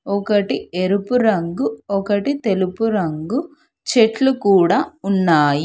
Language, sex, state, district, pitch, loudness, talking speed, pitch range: Telugu, female, Telangana, Hyderabad, 200 Hz, -18 LUFS, 95 wpm, 185-235 Hz